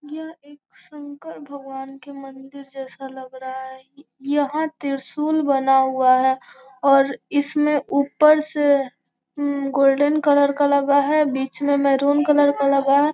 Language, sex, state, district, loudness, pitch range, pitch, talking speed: Hindi, female, Bihar, Gopalganj, -19 LUFS, 270-290 Hz, 280 Hz, 145 wpm